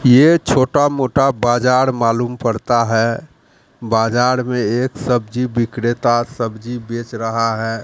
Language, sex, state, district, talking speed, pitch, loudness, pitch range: Hindi, male, Bihar, Katihar, 130 wpm, 120 Hz, -16 LUFS, 115-130 Hz